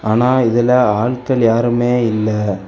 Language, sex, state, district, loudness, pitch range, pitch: Tamil, male, Tamil Nadu, Kanyakumari, -14 LUFS, 110-125 Hz, 120 Hz